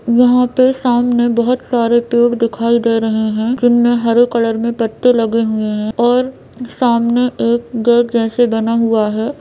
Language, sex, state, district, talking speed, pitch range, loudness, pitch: Hindi, female, Bihar, Sitamarhi, 165 wpm, 230-245 Hz, -14 LUFS, 235 Hz